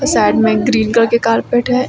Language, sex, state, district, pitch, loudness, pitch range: Hindi, female, Uttar Pradesh, Lucknow, 230 Hz, -13 LUFS, 225-245 Hz